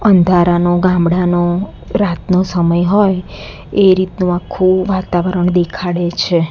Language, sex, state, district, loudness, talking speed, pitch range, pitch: Gujarati, female, Gujarat, Gandhinagar, -14 LUFS, 100 wpm, 175-185 Hz, 180 Hz